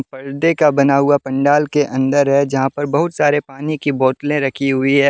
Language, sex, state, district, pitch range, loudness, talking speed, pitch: Hindi, male, Jharkhand, Deoghar, 135-145 Hz, -16 LUFS, 210 wpm, 140 Hz